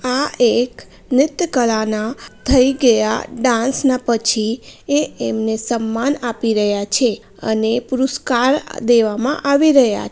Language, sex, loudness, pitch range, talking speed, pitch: Gujarati, female, -17 LUFS, 225-265 Hz, 135 wpm, 240 Hz